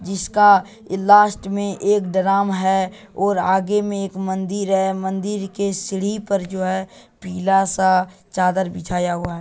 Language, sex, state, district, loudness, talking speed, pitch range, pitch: Magahi, male, Bihar, Gaya, -19 LUFS, 155 wpm, 190-200 Hz, 195 Hz